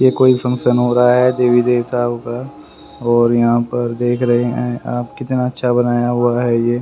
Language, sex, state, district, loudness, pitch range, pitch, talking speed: Hindi, male, Haryana, Rohtak, -15 LUFS, 120-125 Hz, 120 Hz, 195 wpm